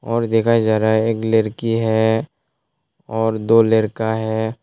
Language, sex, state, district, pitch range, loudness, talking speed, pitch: Hindi, male, Tripura, West Tripura, 110-115 Hz, -18 LUFS, 155 wpm, 110 Hz